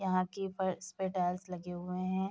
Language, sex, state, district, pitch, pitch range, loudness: Hindi, female, Bihar, Bhagalpur, 185 Hz, 180-190 Hz, -36 LUFS